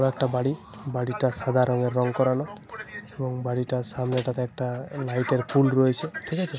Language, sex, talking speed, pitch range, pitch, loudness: Bengali, male, 165 wpm, 125-135 Hz, 130 Hz, -25 LUFS